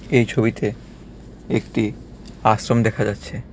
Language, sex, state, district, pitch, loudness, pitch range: Bengali, male, Tripura, West Tripura, 110 Hz, -21 LUFS, 75-120 Hz